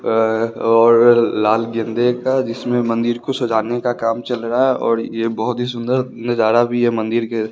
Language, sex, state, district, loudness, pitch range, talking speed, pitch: Hindi, male, Bihar, West Champaran, -17 LUFS, 115-120 Hz, 190 wpm, 115 Hz